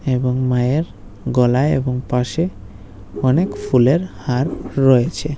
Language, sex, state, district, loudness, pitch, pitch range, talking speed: Bengali, female, West Bengal, Malda, -18 LUFS, 130 Hz, 125-145 Hz, 100 wpm